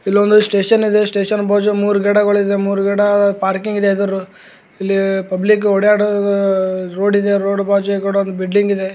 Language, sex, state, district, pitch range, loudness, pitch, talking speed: Kannada, male, Karnataka, Gulbarga, 195-205 Hz, -15 LUFS, 200 Hz, 160 wpm